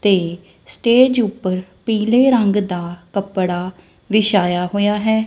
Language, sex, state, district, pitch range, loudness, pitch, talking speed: Punjabi, female, Punjab, Kapurthala, 180-220 Hz, -17 LUFS, 200 Hz, 225 wpm